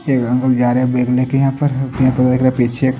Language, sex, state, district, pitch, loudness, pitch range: Hindi, male, Haryana, Rohtak, 130 Hz, -15 LUFS, 125-135 Hz